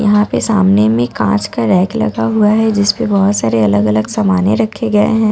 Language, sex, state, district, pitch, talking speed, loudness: Hindi, female, Bihar, Katihar, 200 Hz, 205 wpm, -13 LUFS